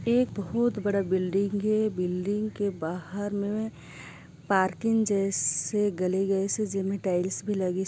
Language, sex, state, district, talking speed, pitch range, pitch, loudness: Hindi, female, Chhattisgarh, Sarguja, 120 wpm, 185-210 Hz, 200 Hz, -28 LUFS